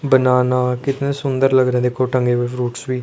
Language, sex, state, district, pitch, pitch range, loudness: Hindi, male, Chandigarh, Chandigarh, 125 Hz, 125-135 Hz, -17 LUFS